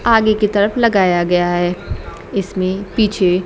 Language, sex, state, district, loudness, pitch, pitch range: Hindi, female, Bihar, Kaimur, -16 LUFS, 195 Hz, 180-215 Hz